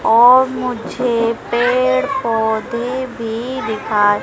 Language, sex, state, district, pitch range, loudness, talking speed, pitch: Hindi, female, Madhya Pradesh, Dhar, 225-255 Hz, -16 LUFS, 85 wpm, 240 Hz